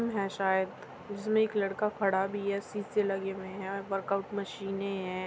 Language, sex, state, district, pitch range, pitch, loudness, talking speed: Hindi, female, Uttar Pradesh, Muzaffarnagar, 195-205 Hz, 195 Hz, -32 LUFS, 180 wpm